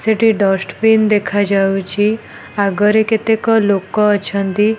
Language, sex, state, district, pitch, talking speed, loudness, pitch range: Odia, female, Odisha, Nuapada, 210 Hz, 90 wpm, -14 LUFS, 200-220 Hz